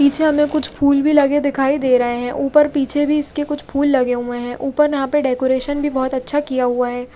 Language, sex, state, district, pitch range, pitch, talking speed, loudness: Hindi, female, Odisha, Khordha, 260-290 Hz, 280 Hz, 235 wpm, -17 LUFS